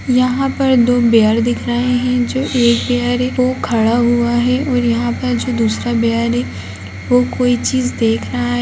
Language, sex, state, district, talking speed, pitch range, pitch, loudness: Hindi, female, Bihar, Jahanabad, 195 wpm, 230-250 Hz, 240 Hz, -15 LUFS